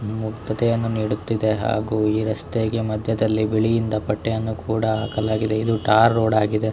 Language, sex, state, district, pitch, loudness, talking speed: Kannada, male, Karnataka, Shimoga, 110 Hz, -21 LUFS, 135 wpm